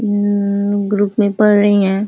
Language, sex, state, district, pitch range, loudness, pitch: Hindi, female, Uttar Pradesh, Ghazipur, 200-205 Hz, -14 LUFS, 205 Hz